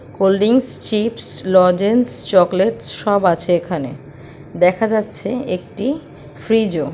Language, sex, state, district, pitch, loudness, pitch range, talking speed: Bengali, female, West Bengal, Purulia, 185 Hz, -17 LUFS, 150-220 Hz, 110 wpm